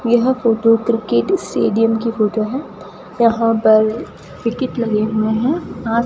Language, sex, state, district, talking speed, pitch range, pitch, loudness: Hindi, female, Rajasthan, Bikaner, 130 wpm, 215-235 Hz, 230 Hz, -17 LUFS